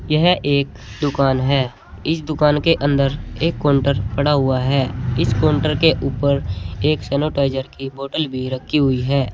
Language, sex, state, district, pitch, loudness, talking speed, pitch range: Hindi, male, Uttar Pradesh, Saharanpur, 140 Hz, -19 LUFS, 160 wpm, 130-150 Hz